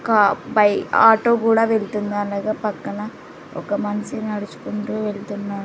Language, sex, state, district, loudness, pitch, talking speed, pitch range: Telugu, female, Andhra Pradesh, Sri Satya Sai, -20 LUFS, 210 Hz, 115 wpm, 205-220 Hz